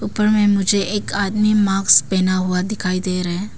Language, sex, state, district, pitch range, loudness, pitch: Hindi, female, Arunachal Pradesh, Papum Pare, 185-205 Hz, -17 LUFS, 195 Hz